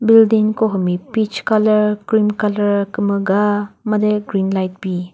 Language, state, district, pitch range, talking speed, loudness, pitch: Chakhesang, Nagaland, Dimapur, 195-215 Hz, 140 wpm, -17 LUFS, 210 Hz